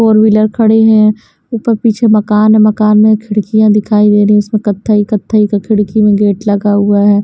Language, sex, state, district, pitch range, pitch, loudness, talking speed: Hindi, female, Bihar, West Champaran, 205-215 Hz, 215 Hz, -9 LUFS, 190 wpm